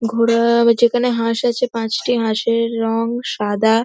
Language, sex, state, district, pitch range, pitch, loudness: Bengali, female, West Bengal, North 24 Parganas, 225-235 Hz, 230 Hz, -17 LUFS